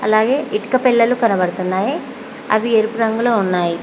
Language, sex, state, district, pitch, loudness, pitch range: Telugu, female, Telangana, Mahabubabad, 225 Hz, -17 LUFS, 200-250 Hz